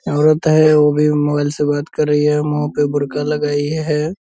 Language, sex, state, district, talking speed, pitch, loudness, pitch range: Hindi, male, Bihar, Purnia, 215 wpm, 150 Hz, -16 LUFS, 145-150 Hz